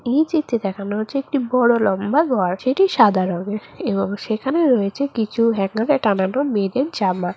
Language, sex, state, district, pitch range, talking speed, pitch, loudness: Bengali, female, West Bengal, Purulia, 200-270 Hz, 155 wpm, 225 Hz, -19 LUFS